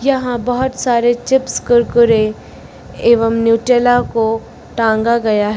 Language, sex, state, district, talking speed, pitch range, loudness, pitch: Hindi, female, Uttar Pradesh, Lucknow, 120 wpm, 225-245 Hz, -14 LUFS, 235 Hz